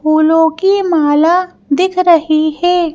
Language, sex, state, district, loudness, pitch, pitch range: Hindi, female, Madhya Pradesh, Bhopal, -12 LUFS, 325 Hz, 310-360 Hz